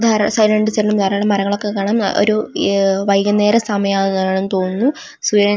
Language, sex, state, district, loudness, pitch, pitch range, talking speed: Malayalam, female, Kerala, Wayanad, -16 LUFS, 205 Hz, 195-215 Hz, 110 wpm